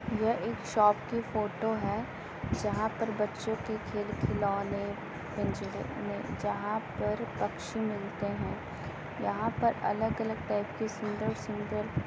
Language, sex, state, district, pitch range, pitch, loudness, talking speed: Hindi, female, Bihar, Lakhisarai, 205-220 Hz, 210 Hz, -33 LUFS, 130 wpm